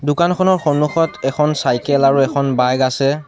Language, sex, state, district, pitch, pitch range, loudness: Assamese, male, Assam, Sonitpur, 140 Hz, 135-150 Hz, -16 LUFS